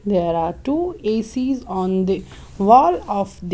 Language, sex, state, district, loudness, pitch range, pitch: English, female, Maharashtra, Mumbai Suburban, -19 LUFS, 185-255 Hz, 200 Hz